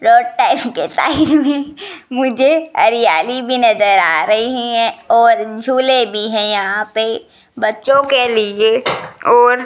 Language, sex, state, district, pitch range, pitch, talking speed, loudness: Hindi, female, Rajasthan, Jaipur, 220-285 Hz, 245 Hz, 110 wpm, -13 LUFS